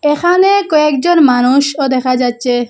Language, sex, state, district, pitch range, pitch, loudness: Bengali, female, Assam, Hailakandi, 255-325 Hz, 280 Hz, -11 LUFS